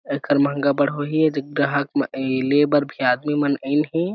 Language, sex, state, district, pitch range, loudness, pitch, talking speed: Chhattisgarhi, male, Chhattisgarh, Sarguja, 140-145 Hz, -20 LUFS, 145 Hz, 190 wpm